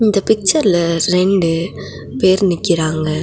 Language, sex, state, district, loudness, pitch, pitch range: Tamil, female, Tamil Nadu, Nilgiris, -15 LUFS, 180 Hz, 165-195 Hz